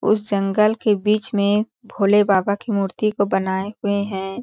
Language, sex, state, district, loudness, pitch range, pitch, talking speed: Hindi, female, Chhattisgarh, Sarguja, -20 LUFS, 200-215 Hz, 205 Hz, 175 wpm